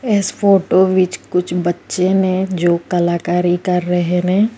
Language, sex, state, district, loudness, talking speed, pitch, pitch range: Punjabi, female, Karnataka, Bangalore, -16 LUFS, 145 wpm, 180 Hz, 175-190 Hz